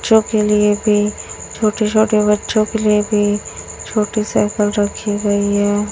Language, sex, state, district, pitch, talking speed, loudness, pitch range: Hindi, female, Chhattisgarh, Raipur, 210 Hz, 150 wpm, -16 LUFS, 205-215 Hz